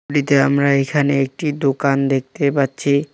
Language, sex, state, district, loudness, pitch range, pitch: Bengali, male, West Bengal, Cooch Behar, -17 LUFS, 135-145 Hz, 140 Hz